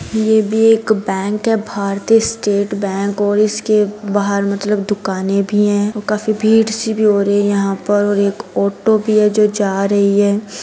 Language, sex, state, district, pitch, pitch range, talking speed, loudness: Hindi, female, Bihar, East Champaran, 205 Hz, 200-215 Hz, 185 wpm, -15 LUFS